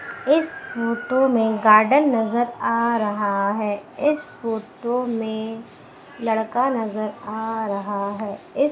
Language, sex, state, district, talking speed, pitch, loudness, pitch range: Hindi, female, Madhya Pradesh, Umaria, 115 wpm, 225 Hz, -22 LUFS, 215-250 Hz